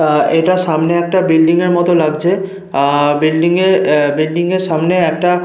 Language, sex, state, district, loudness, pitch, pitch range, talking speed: Bengali, male, Jharkhand, Sahebganj, -13 LUFS, 170 Hz, 155-180 Hz, 175 wpm